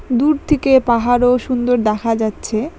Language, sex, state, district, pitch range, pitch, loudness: Bengali, female, West Bengal, Alipurduar, 230-260 Hz, 245 Hz, -16 LUFS